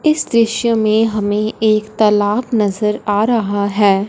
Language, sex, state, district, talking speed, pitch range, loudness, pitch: Hindi, female, Punjab, Fazilka, 145 wpm, 205-225 Hz, -15 LUFS, 215 Hz